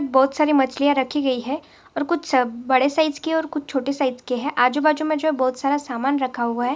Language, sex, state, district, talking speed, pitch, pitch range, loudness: Hindi, female, Maharashtra, Pune, 240 wpm, 275 Hz, 260-300 Hz, -21 LUFS